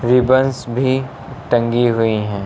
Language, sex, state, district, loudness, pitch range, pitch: Hindi, male, Uttar Pradesh, Lucknow, -16 LUFS, 115-130 Hz, 125 Hz